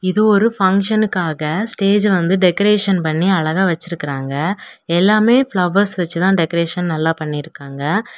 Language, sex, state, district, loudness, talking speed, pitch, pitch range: Tamil, female, Tamil Nadu, Kanyakumari, -16 LUFS, 115 wpm, 185 Hz, 165-205 Hz